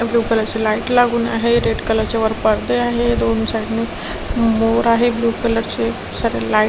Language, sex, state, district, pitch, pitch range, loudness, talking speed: Marathi, female, Maharashtra, Washim, 225 Hz, 215-230 Hz, -17 LUFS, 205 wpm